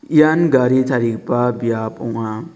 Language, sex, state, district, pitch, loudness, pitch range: Garo, male, Meghalaya, West Garo Hills, 120 Hz, -17 LUFS, 115-130 Hz